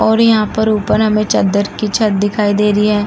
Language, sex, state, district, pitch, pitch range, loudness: Hindi, female, Uttar Pradesh, Jalaun, 210 Hz, 205-215 Hz, -13 LUFS